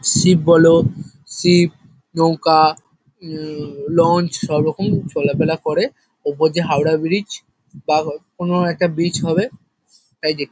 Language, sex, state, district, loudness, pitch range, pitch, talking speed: Bengali, male, West Bengal, Kolkata, -17 LUFS, 155-175 Hz, 160 Hz, 125 wpm